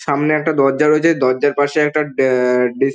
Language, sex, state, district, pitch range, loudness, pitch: Bengali, male, West Bengal, Dakshin Dinajpur, 135-150 Hz, -15 LUFS, 145 Hz